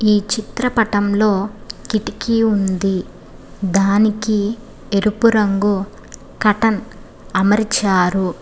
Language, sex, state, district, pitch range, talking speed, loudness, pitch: Telugu, female, Telangana, Hyderabad, 195-215 Hz, 65 wpm, -17 LUFS, 210 Hz